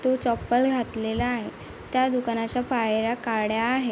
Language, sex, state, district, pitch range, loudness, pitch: Marathi, female, Maharashtra, Chandrapur, 225-250 Hz, -25 LUFS, 240 Hz